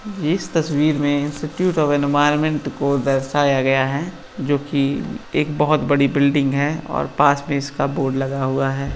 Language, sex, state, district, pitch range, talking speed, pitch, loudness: Hindi, male, Uttar Pradesh, Varanasi, 140-150 Hz, 160 wpm, 145 Hz, -19 LUFS